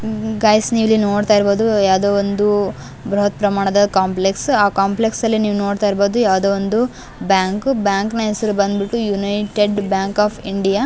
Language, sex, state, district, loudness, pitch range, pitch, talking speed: Kannada, female, Karnataka, Gulbarga, -17 LUFS, 200-215 Hz, 205 Hz, 155 wpm